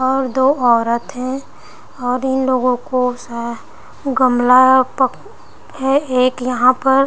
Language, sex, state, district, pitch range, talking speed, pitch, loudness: Hindi, female, Chhattisgarh, Raigarh, 250-265 Hz, 135 wpm, 255 Hz, -16 LUFS